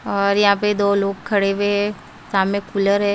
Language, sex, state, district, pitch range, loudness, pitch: Hindi, female, Bihar, Katihar, 200-205 Hz, -19 LUFS, 200 Hz